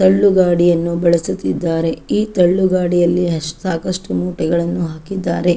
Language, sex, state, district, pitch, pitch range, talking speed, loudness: Kannada, female, Karnataka, Chamarajanagar, 175 Hz, 165-185 Hz, 75 wpm, -16 LUFS